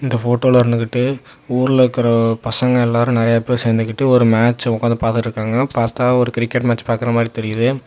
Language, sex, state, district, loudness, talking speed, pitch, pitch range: Tamil, male, Tamil Nadu, Namakkal, -16 LUFS, 175 wpm, 120 Hz, 115-125 Hz